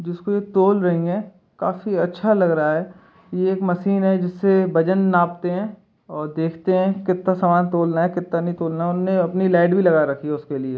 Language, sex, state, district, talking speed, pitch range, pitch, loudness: Hindi, male, Uttar Pradesh, Jalaun, 205 wpm, 170-190 Hz, 180 Hz, -20 LUFS